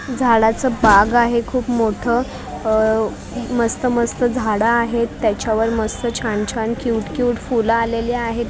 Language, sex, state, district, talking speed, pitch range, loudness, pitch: Marathi, female, Maharashtra, Mumbai Suburban, 150 wpm, 225-240 Hz, -18 LUFS, 235 Hz